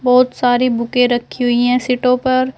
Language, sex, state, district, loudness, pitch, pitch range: Hindi, female, Uttar Pradesh, Shamli, -15 LUFS, 250 Hz, 245-255 Hz